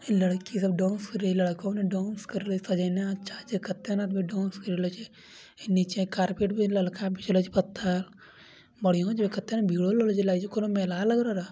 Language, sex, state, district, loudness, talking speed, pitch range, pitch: Angika, male, Bihar, Bhagalpur, -28 LUFS, 150 wpm, 185-205 Hz, 195 Hz